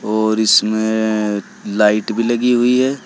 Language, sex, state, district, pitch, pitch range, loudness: Hindi, male, Uttar Pradesh, Saharanpur, 110 Hz, 105-120 Hz, -16 LUFS